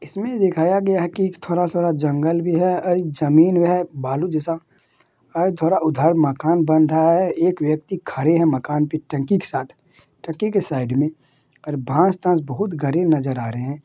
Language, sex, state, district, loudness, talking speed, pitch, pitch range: Hindi, male, Bihar, Madhepura, -19 LUFS, 185 wpm, 165 Hz, 150-180 Hz